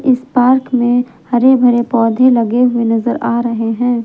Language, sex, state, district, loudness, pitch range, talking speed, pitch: Hindi, female, Jharkhand, Palamu, -13 LUFS, 235-250 Hz, 175 wpm, 245 Hz